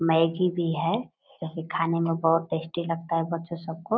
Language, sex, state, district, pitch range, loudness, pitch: Hindi, female, Bihar, Purnia, 165-170 Hz, -27 LUFS, 165 Hz